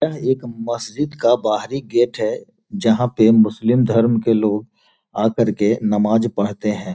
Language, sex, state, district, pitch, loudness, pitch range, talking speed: Hindi, male, Bihar, Gopalganj, 115 Hz, -18 LUFS, 110-125 Hz, 165 wpm